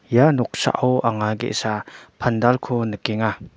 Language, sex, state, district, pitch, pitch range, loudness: Garo, male, Meghalaya, North Garo Hills, 120 Hz, 110-125 Hz, -21 LUFS